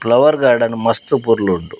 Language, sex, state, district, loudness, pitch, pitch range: Tulu, male, Karnataka, Dakshina Kannada, -15 LUFS, 115 Hz, 100-115 Hz